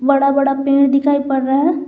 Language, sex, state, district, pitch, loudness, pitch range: Hindi, female, Jharkhand, Garhwa, 275 Hz, -15 LUFS, 275-280 Hz